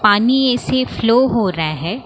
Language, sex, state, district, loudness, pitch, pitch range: Hindi, female, Maharashtra, Mumbai Suburban, -16 LUFS, 230 Hz, 195-255 Hz